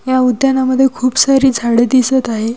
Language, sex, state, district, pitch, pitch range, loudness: Marathi, female, Maharashtra, Washim, 255 Hz, 240-265 Hz, -12 LUFS